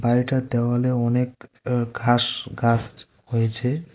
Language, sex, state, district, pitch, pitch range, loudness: Bengali, male, West Bengal, Cooch Behar, 120 Hz, 120-125 Hz, -20 LUFS